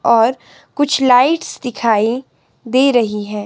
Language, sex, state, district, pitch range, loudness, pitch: Hindi, female, Himachal Pradesh, Shimla, 225-265 Hz, -15 LUFS, 245 Hz